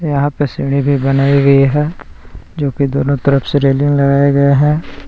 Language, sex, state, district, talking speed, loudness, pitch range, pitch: Hindi, male, Jharkhand, Palamu, 190 wpm, -13 LUFS, 135-145 Hz, 140 Hz